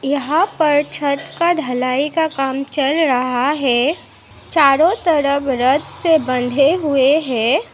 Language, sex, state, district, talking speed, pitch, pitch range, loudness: Hindi, female, Assam, Sonitpur, 130 wpm, 285 Hz, 265-315 Hz, -16 LUFS